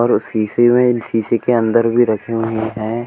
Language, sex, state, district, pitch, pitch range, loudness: Hindi, male, Uttar Pradesh, Shamli, 115 Hz, 110-120 Hz, -16 LUFS